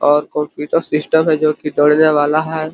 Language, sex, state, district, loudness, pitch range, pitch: Hindi, male, Chhattisgarh, Korba, -15 LUFS, 150-155 Hz, 150 Hz